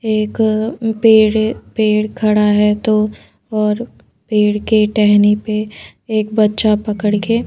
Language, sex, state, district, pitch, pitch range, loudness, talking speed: Hindi, female, Madhya Pradesh, Bhopal, 215 Hz, 210-220 Hz, -15 LUFS, 120 wpm